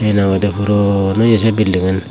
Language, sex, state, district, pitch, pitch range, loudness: Chakma, male, Tripura, Dhalai, 100 Hz, 95-110 Hz, -14 LUFS